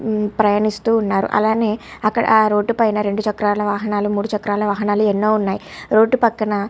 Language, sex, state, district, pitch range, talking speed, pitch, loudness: Telugu, female, Andhra Pradesh, Guntur, 205-220 Hz, 150 wpm, 210 Hz, -18 LUFS